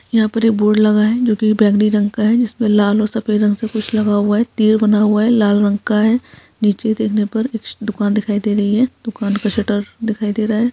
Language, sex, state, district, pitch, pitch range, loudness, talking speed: Hindi, female, Bihar, Saharsa, 215 Hz, 210-225 Hz, -16 LUFS, 255 wpm